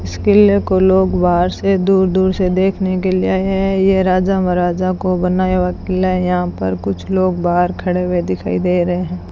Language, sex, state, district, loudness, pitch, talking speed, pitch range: Hindi, female, Rajasthan, Bikaner, -15 LUFS, 185 Hz, 205 wpm, 180-190 Hz